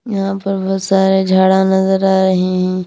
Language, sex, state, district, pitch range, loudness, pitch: Hindi, female, Punjab, Kapurthala, 190-195 Hz, -14 LUFS, 190 Hz